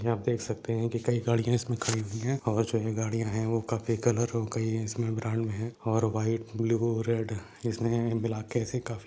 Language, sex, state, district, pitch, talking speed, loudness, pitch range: Hindi, male, Uttar Pradesh, Deoria, 115 Hz, 225 wpm, -30 LUFS, 110-115 Hz